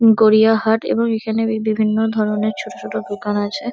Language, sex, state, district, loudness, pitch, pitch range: Bengali, female, West Bengal, Kolkata, -18 LUFS, 215 Hz, 205-220 Hz